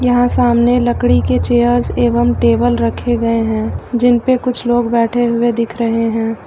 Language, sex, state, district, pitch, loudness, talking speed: Hindi, female, Uttar Pradesh, Lucknow, 230 Hz, -14 LUFS, 165 wpm